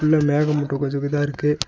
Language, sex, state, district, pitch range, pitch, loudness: Tamil, male, Tamil Nadu, Nilgiris, 140-150 Hz, 145 Hz, -21 LUFS